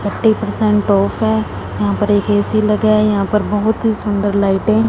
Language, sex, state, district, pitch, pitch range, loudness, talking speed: Hindi, female, Punjab, Fazilka, 205 Hz, 195-215 Hz, -15 LUFS, 210 wpm